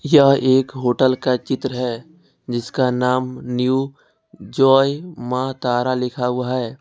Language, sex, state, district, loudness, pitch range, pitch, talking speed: Hindi, male, Jharkhand, Ranchi, -19 LUFS, 125-135 Hz, 130 Hz, 130 wpm